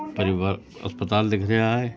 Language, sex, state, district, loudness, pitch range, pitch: Hindi, male, Uttar Pradesh, Budaun, -24 LUFS, 100-115 Hz, 105 Hz